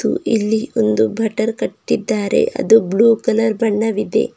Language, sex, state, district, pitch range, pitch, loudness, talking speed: Kannada, female, Karnataka, Bidar, 210-225 Hz, 225 Hz, -16 LUFS, 125 wpm